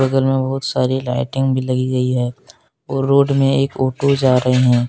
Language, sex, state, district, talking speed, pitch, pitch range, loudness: Hindi, male, Jharkhand, Deoghar, 210 wpm, 130 Hz, 125-135 Hz, -17 LUFS